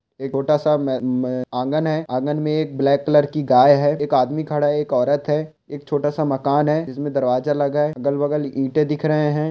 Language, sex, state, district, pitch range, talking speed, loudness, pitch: Hindi, male, Chhattisgarh, Korba, 135-150 Hz, 235 wpm, -19 LUFS, 145 Hz